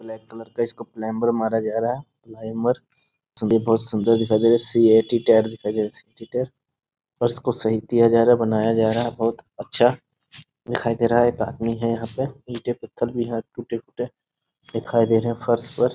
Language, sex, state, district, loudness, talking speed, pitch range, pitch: Hindi, male, Bihar, Sitamarhi, -22 LUFS, 205 wpm, 110-120 Hz, 115 Hz